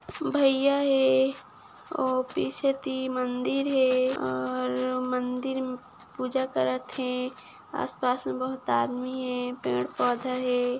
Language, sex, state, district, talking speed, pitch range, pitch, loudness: Hindi, female, Chhattisgarh, Kabirdham, 120 wpm, 245-265 Hz, 255 Hz, -28 LUFS